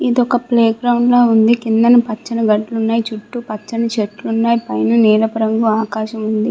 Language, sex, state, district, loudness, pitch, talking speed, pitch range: Telugu, female, Andhra Pradesh, Visakhapatnam, -15 LUFS, 225 Hz, 165 wpm, 220-235 Hz